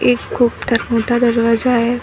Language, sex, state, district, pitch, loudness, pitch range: Marathi, female, Maharashtra, Washim, 235 Hz, -15 LUFS, 230-240 Hz